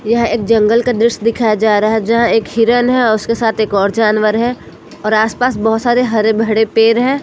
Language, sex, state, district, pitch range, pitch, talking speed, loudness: Hindi, female, Chhattisgarh, Raipur, 220-235 Hz, 225 Hz, 240 wpm, -13 LUFS